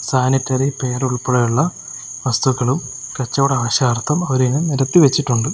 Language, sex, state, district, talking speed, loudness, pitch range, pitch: Malayalam, male, Kerala, Kozhikode, 85 wpm, -17 LUFS, 125-140 Hz, 130 Hz